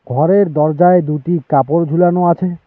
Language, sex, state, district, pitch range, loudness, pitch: Bengali, male, West Bengal, Alipurduar, 150-180 Hz, -13 LUFS, 170 Hz